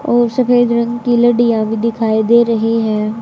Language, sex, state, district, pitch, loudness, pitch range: Hindi, male, Haryana, Rohtak, 230 Hz, -13 LUFS, 225-240 Hz